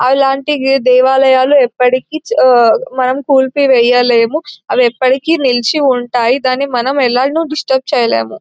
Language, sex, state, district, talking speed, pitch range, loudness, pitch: Telugu, male, Telangana, Nalgonda, 115 wpm, 245-275 Hz, -11 LUFS, 260 Hz